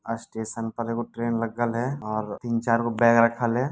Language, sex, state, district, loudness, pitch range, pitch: Maithili, male, Bihar, Lakhisarai, -25 LUFS, 115-120 Hz, 115 Hz